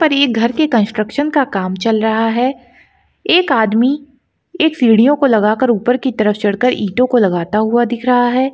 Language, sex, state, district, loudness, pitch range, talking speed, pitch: Hindi, female, Uttarakhand, Tehri Garhwal, -14 LUFS, 220-270 Hz, 190 wpm, 245 Hz